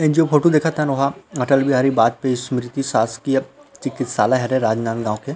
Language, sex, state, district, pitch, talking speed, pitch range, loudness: Chhattisgarhi, male, Chhattisgarh, Rajnandgaon, 135 Hz, 180 wpm, 120-140 Hz, -19 LUFS